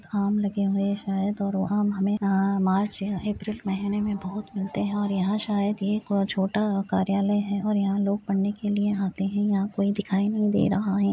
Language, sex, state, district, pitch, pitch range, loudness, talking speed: Hindi, female, Uttar Pradesh, Jyotiba Phule Nagar, 200 Hz, 195-205 Hz, -26 LUFS, 215 wpm